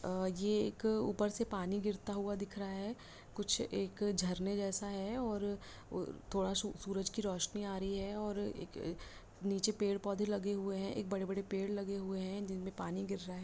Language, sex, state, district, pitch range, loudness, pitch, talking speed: Hindi, female, Bihar, Jahanabad, 195-205 Hz, -39 LUFS, 200 Hz, 190 wpm